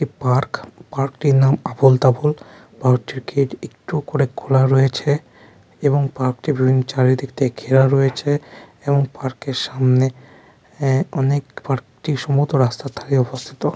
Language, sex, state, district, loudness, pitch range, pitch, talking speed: Bengali, male, West Bengal, Kolkata, -19 LUFS, 130-145 Hz, 135 Hz, 130 wpm